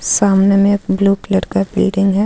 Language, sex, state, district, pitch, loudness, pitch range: Hindi, female, Jharkhand, Ranchi, 195 Hz, -14 LUFS, 195-200 Hz